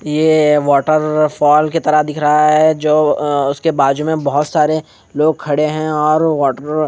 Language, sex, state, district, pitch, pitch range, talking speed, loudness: Hindi, male, Bihar, Katihar, 150 Hz, 150-155 Hz, 175 wpm, -14 LUFS